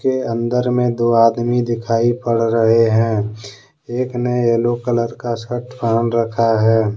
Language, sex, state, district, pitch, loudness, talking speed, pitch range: Hindi, male, Jharkhand, Deoghar, 115 Hz, -17 LUFS, 155 wpm, 115-120 Hz